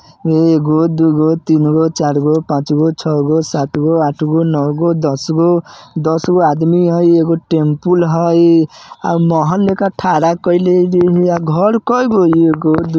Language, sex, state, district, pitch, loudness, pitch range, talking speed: Bajjika, male, Bihar, Vaishali, 165 Hz, -13 LUFS, 155-170 Hz, 115 wpm